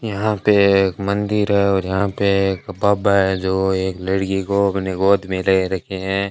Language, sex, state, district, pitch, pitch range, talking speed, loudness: Hindi, male, Rajasthan, Bikaner, 95 Hz, 95-100 Hz, 200 wpm, -18 LUFS